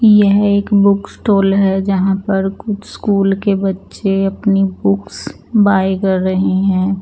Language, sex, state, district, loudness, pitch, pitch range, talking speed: Hindi, female, Chandigarh, Chandigarh, -14 LUFS, 195 Hz, 195-200 Hz, 145 wpm